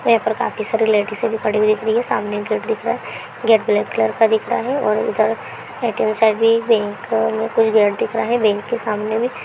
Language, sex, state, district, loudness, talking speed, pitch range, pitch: Hindi, female, Bihar, Saharsa, -18 LUFS, 260 wpm, 215-225 Hz, 220 Hz